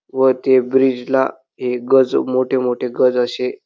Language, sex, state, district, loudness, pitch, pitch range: Marathi, male, Maharashtra, Dhule, -17 LUFS, 130 Hz, 125-130 Hz